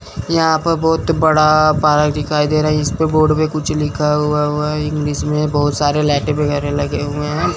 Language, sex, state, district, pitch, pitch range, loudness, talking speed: Hindi, male, Chandigarh, Chandigarh, 150 Hz, 150-155 Hz, -16 LUFS, 215 wpm